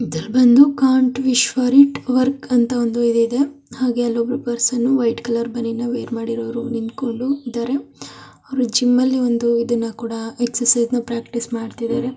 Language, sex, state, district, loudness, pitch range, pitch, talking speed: Kannada, female, Karnataka, Mysore, -18 LUFS, 235-255 Hz, 240 Hz, 110 wpm